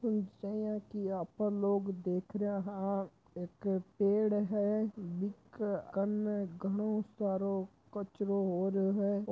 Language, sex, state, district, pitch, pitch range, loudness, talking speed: Marwari, male, Rajasthan, Churu, 200 Hz, 195-210 Hz, -35 LUFS, 105 wpm